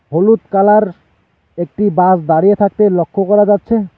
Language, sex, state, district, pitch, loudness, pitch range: Bengali, male, West Bengal, Alipurduar, 200 Hz, -12 LUFS, 180-205 Hz